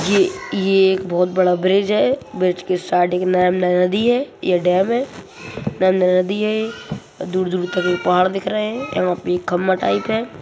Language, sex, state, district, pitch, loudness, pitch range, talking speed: Hindi, female, Uttar Pradesh, Budaun, 185 Hz, -18 LUFS, 180-200 Hz, 155 wpm